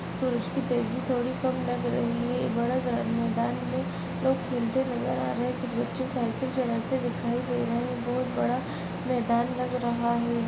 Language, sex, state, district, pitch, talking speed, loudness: Hindi, female, Chhattisgarh, Balrampur, 235 Hz, 150 wpm, -29 LUFS